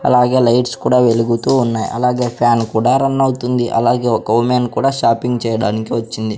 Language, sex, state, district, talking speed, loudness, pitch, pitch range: Telugu, male, Andhra Pradesh, Sri Satya Sai, 160 wpm, -15 LUFS, 120 Hz, 115-125 Hz